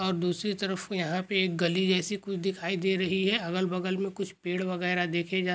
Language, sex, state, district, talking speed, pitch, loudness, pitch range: Hindi, male, Rajasthan, Churu, 225 wpm, 185 Hz, -29 LUFS, 180-190 Hz